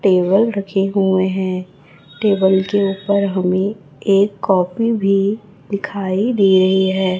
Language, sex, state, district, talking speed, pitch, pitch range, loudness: Hindi, male, Chhattisgarh, Raipur, 125 wpm, 195 Hz, 185-200 Hz, -17 LUFS